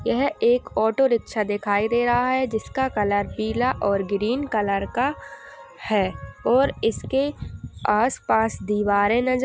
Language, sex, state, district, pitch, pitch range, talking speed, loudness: Hindi, female, Uttar Pradesh, Etah, 225 Hz, 205-260 Hz, 145 wpm, -22 LUFS